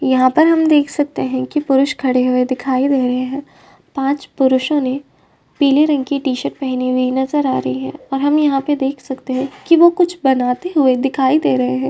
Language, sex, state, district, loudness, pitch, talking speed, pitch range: Hindi, female, Uttar Pradesh, Varanasi, -16 LUFS, 270 Hz, 210 wpm, 255-290 Hz